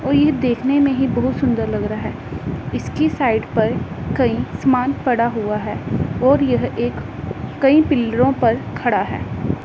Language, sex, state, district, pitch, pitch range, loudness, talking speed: Hindi, female, Punjab, Pathankot, 265 Hz, 235-280 Hz, -19 LUFS, 160 wpm